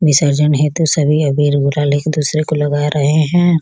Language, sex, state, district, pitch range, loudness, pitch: Hindi, female, Bihar, Gopalganj, 145-155 Hz, -14 LUFS, 150 Hz